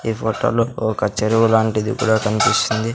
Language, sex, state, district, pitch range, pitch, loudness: Telugu, male, Andhra Pradesh, Sri Satya Sai, 110-115 Hz, 110 Hz, -18 LUFS